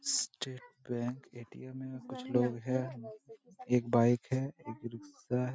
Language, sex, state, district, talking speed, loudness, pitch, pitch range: Hindi, male, Jharkhand, Jamtara, 140 wpm, -35 LUFS, 125 Hz, 120-130 Hz